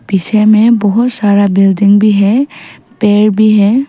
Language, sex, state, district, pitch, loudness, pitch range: Hindi, female, Arunachal Pradesh, Papum Pare, 210 Hz, -9 LUFS, 200-225 Hz